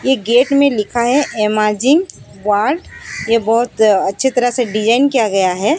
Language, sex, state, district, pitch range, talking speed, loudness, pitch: Hindi, female, Odisha, Sambalpur, 210-265 Hz, 165 wpm, -14 LUFS, 235 Hz